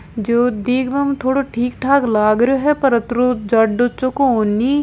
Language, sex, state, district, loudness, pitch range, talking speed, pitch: Hindi, female, Rajasthan, Nagaur, -16 LUFS, 230-270 Hz, 160 wpm, 250 Hz